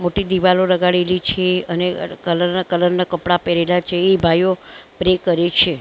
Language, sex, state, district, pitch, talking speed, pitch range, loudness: Gujarati, female, Maharashtra, Mumbai Suburban, 180 Hz, 175 wpm, 175-185 Hz, -17 LUFS